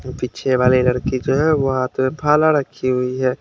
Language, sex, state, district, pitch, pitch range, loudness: Hindi, male, Bihar, Kaimur, 130 Hz, 130-140 Hz, -18 LUFS